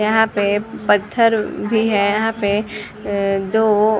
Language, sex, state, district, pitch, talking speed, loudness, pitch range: Hindi, female, Chhattisgarh, Sarguja, 210 Hz, 150 wpm, -17 LUFS, 205-220 Hz